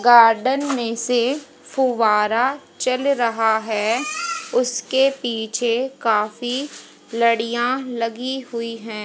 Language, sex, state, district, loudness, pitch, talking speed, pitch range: Hindi, female, Haryana, Jhajjar, -20 LUFS, 240 Hz, 95 wpm, 230-265 Hz